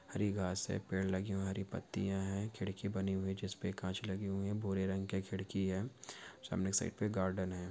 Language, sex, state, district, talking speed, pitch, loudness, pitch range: Hindi, male, Bihar, Saharsa, 220 wpm, 95 Hz, -39 LUFS, 95-100 Hz